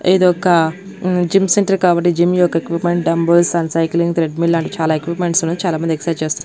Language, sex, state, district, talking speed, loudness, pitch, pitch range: Telugu, female, Andhra Pradesh, Annamaya, 175 wpm, -16 LUFS, 170 Hz, 165-180 Hz